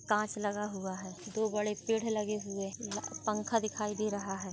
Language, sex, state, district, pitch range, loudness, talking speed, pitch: Hindi, female, Maharashtra, Dhule, 200-215 Hz, -35 LUFS, 185 wpm, 210 Hz